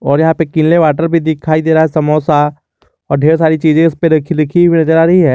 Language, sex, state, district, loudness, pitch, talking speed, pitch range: Hindi, male, Jharkhand, Garhwa, -11 LUFS, 160 Hz, 270 wpm, 155-165 Hz